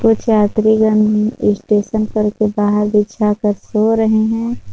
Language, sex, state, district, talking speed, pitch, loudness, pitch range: Hindi, female, Jharkhand, Palamu, 140 wpm, 215 Hz, -15 LUFS, 210-220 Hz